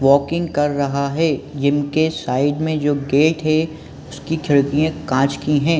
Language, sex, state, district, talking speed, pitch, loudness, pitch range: Hindi, male, Chhattisgarh, Balrampur, 155 wpm, 145 Hz, -18 LUFS, 140-155 Hz